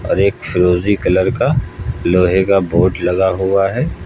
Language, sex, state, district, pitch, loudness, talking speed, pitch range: Hindi, male, Uttar Pradesh, Lucknow, 95 Hz, -15 LUFS, 165 wpm, 90-100 Hz